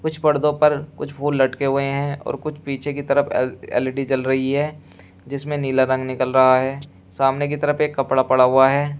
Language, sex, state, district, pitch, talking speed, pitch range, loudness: Hindi, male, Uttar Pradesh, Shamli, 140 Hz, 215 wpm, 130-145 Hz, -20 LUFS